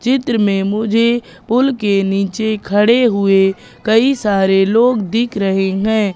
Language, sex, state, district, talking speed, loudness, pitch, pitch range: Hindi, female, Madhya Pradesh, Katni, 135 wpm, -14 LUFS, 215 Hz, 195-235 Hz